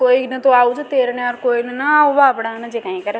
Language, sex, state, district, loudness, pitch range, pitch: Rajasthani, female, Rajasthan, Nagaur, -16 LUFS, 235-265 Hz, 250 Hz